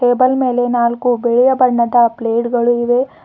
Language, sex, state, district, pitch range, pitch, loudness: Kannada, female, Karnataka, Bidar, 235-250 Hz, 245 Hz, -14 LUFS